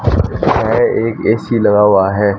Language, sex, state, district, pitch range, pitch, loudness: Hindi, male, Haryana, Rohtak, 100-125 Hz, 105 Hz, -13 LUFS